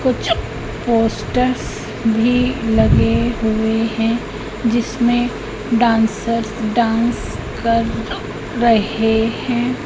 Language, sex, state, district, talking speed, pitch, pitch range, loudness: Hindi, female, Madhya Pradesh, Katni, 75 wpm, 230 Hz, 220-240 Hz, -18 LUFS